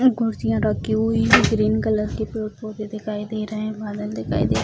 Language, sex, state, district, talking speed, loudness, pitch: Hindi, female, Bihar, Bhagalpur, 245 wpm, -22 LUFS, 210 Hz